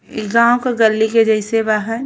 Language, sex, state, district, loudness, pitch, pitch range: Bhojpuri, female, Uttar Pradesh, Ghazipur, -15 LUFS, 225 Hz, 220-230 Hz